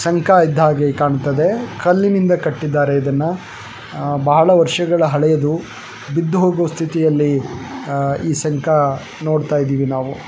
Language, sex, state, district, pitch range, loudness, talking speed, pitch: Kannada, male, Karnataka, Chamarajanagar, 140-165 Hz, -16 LUFS, 105 wpm, 150 Hz